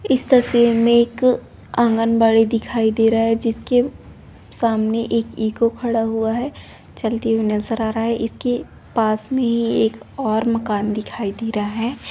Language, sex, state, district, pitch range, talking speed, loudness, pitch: Hindi, female, West Bengal, Paschim Medinipur, 225-235 Hz, 165 wpm, -19 LUFS, 230 Hz